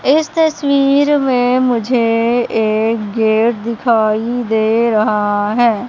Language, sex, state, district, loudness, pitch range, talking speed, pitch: Hindi, male, Madhya Pradesh, Katni, -14 LUFS, 220-255 Hz, 100 wpm, 235 Hz